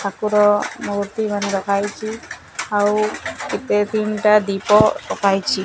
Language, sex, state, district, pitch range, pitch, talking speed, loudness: Odia, male, Odisha, Nuapada, 200-210 Hz, 205 Hz, 115 wpm, -19 LUFS